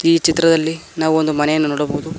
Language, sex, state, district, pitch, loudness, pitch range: Kannada, male, Karnataka, Koppal, 160 Hz, -16 LUFS, 150-165 Hz